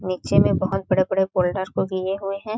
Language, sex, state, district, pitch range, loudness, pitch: Hindi, female, Chhattisgarh, Sarguja, 185-195 Hz, -22 LUFS, 190 Hz